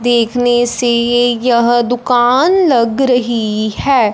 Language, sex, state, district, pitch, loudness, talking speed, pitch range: Hindi, male, Punjab, Fazilka, 240 Hz, -12 LUFS, 115 wpm, 235-245 Hz